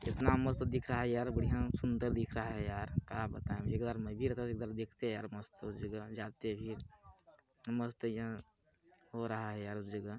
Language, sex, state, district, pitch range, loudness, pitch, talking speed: Hindi, male, Chhattisgarh, Balrampur, 105-120 Hz, -39 LUFS, 110 Hz, 220 wpm